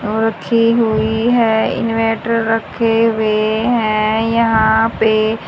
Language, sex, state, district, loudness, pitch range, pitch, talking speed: Hindi, male, Haryana, Charkhi Dadri, -15 LUFS, 220-230 Hz, 225 Hz, 100 wpm